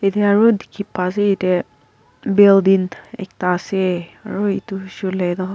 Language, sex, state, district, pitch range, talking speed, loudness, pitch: Nagamese, female, Nagaland, Kohima, 180-200 Hz, 140 wpm, -18 LUFS, 190 Hz